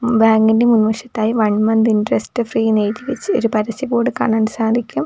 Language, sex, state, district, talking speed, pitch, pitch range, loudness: Malayalam, female, Kerala, Kollam, 165 wpm, 225 Hz, 220-235 Hz, -16 LUFS